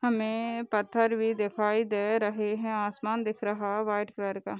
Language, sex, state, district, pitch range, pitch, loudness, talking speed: Hindi, female, Bihar, Darbhanga, 210-225 Hz, 215 Hz, -29 LUFS, 170 wpm